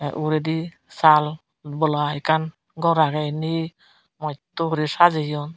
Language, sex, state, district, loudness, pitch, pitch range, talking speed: Chakma, female, Tripura, Unakoti, -21 LUFS, 155 Hz, 150-160 Hz, 110 wpm